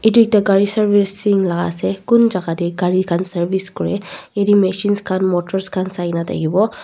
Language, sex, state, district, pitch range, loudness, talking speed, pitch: Nagamese, female, Nagaland, Dimapur, 175-205 Hz, -17 LUFS, 185 wpm, 190 Hz